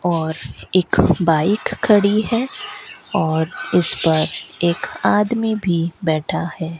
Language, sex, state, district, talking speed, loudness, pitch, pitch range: Hindi, female, Rajasthan, Bikaner, 115 wpm, -18 LUFS, 175 Hz, 160-210 Hz